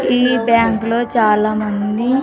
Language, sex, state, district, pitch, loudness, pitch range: Telugu, female, Andhra Pradesh, Sri Satya Sai, 230 Hz, -15 LUFS, 215-240 Hz